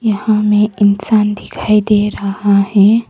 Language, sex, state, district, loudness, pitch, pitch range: Hindi, female, Arunachal Pradesh, Papum Pare, -13 LUFS, 210 Hz, 200-215 Hz